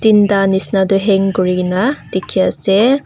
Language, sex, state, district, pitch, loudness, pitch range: Nagamese, female, Nagaland, Kohima, 195 Hz, -14 LUFS, 190-215 Hz